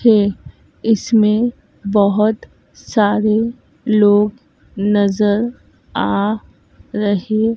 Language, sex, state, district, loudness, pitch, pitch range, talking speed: Hindi, female, Madhya Pradesh, Dhar, -16 LUFS, 215 Hz, 205-225 Hz, 65 wpm